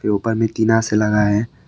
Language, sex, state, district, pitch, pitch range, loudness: Hindi, male, Arunachal Pradesh, Longding, 110 Hz, 105-115 Hz, -17 LUFS